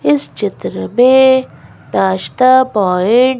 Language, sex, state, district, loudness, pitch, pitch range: Hindi, female, Madhya Pradesh, Bhopal, -12 LUFS, 230 Hz, 180-255 Hz